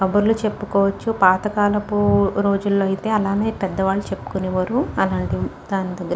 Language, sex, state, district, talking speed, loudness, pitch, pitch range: Telugu, female, Andhra Pradesh, Chittoor, 80 wpm, -20 LUFS, 200 Hz, 190-205 Hz